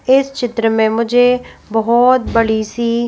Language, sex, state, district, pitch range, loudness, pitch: Hindi, female, Madhya Pradesh, Bhopal, 225-250 Hz, -14 LUFS, 235 Hz